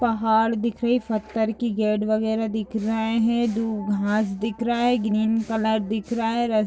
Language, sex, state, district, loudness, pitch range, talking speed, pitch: Hindi, female, Maharashtra, Dhule, -23 LUFS, 215-230 Hz, 190 wpm, 220 Hz